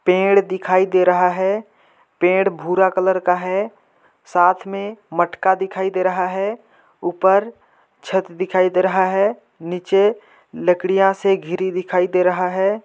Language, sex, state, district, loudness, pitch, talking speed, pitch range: Hindi, male, Chhattisgarh, Jashpur, -18 LUFS, 185 Hz, 145 wpm, 180-195 Hz